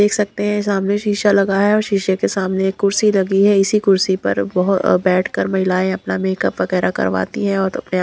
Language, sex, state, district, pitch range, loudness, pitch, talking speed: Hindi, female, Punjab, Kapurthala, 185-205 Hz, -17 LUFS, 195 Hz, 210 wpm